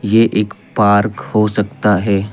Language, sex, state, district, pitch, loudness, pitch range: Hindi, male, Assam, Kamrup Metropolitan, 105 Hz, -15 LUFS, 105-110 Hz